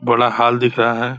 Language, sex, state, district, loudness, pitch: Hindi, male, Bihar, Purnia, -16 LUFS, 120 Hz